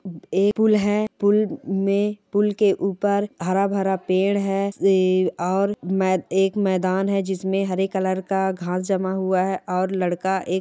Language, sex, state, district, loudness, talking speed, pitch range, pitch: Hindi, female, Chhattisgarh, Rajnandgaon, -22 LUFS, 160 wpm, 185-200 Hz, 190 Hz